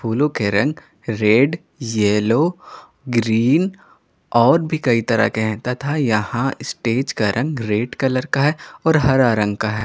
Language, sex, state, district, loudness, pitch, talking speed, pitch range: Hindi, male, Jharkhand, Garhwa, -18 LUFS, 120 Hz, 160 wpm, 110-145 Hz